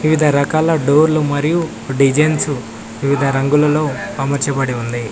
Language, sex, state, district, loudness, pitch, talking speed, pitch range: Telugu, male, Telangana, Mahabubabad, -16 LUFS, 140 Hz, 105 wpm, 135-155 Hz